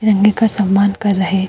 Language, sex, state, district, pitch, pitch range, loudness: Hindi, female, Uttar Pradesh, Jyotiba Phule Nagar, 200 Hz, 195-210 Hz, -14 LUFS